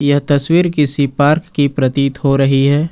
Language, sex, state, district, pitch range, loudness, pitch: Hindi, male, Jharkhand, Ranchi, 140-150 Hz, -14 LUFS, 145 Hz